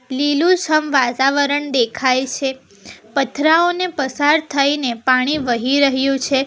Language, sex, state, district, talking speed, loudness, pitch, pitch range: Gujarati, female, Gujarat, Valsad, 100 wpm, -17 LUFS, 275 Hz, 260-295 Hz